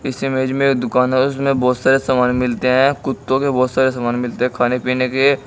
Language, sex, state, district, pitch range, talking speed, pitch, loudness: Hindi, male, Uttar Pradesh, Shamli, 125-135 Hz, 230 wpm, 130 Hz, -17 LUFS